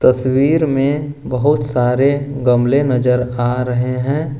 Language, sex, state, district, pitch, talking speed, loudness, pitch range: Hindi, male, Jharkhand, Ranchi, 130 Hz, 120 wpm, -16 LUFS, 125-140 Hz